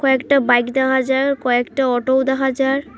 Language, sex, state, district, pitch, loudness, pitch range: Bengali, female, Assam, Hailakandi, 265 Hz, -17 LUFS, 255-270 Hz